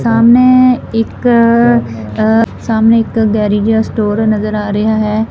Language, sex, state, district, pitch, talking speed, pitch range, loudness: Punjabi, female, Punjab, Fazilka, 220 Hz, 135 wpm, 210-230 Hz, -11 LUFS